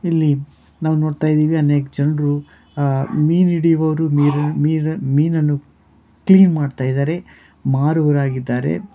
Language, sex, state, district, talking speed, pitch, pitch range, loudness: Kannada, male, Karnataka, Bellary, 100 wpm, 150 Hz, 145-160 Hz, -17 LUFS